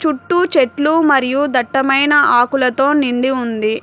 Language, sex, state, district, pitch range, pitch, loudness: Telugu, female, Telangana, Hyderabad, 255-290 Hz, 270 Hz, -14 LUFS